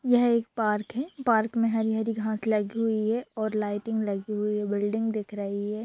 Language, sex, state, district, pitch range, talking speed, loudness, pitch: Hindi, female, Bihar, Darbhanga, 210-225 Hz, 205 wpm, -27 LUFS, 220 Hz